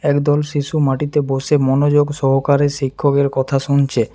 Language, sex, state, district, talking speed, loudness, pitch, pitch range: Bengali, male, West Bengal, Alipurduar, 130 wpm, -16 LUFS, 140 Hz, 135-145 Hz